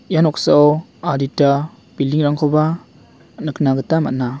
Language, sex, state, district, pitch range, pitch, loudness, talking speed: Garo, male, Meghalaya, West Garo Hills, 140-160 Hz, 150 Hz, -17 LUFS, 95 wpm